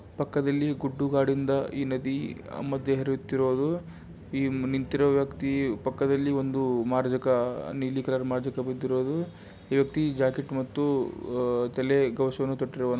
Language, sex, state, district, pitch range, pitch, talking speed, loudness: Kannada, male, Karnataka, Bijapur, 130-140 Hz, 135 Hz, 115 wpm, -28 LUFS